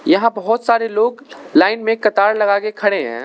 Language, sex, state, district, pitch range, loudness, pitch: Hindi, male, Arunachal Pradesh, Lower Dibang Valley, 205-235 Hz, -16 LUFS, 225 Hz